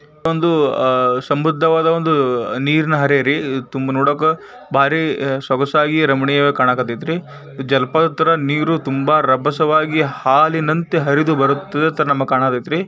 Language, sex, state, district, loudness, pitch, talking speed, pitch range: Kannada, male, Karnataka, Bijapur, -16 LUFS, 145 Hz, 105 wpm, 135-160 Hz